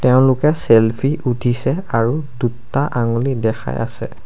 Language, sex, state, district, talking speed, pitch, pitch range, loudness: Assamese, male, Assam, Sonitpur, 115 wpm, 125 Hz, 115-135 Hz, -17 LUFS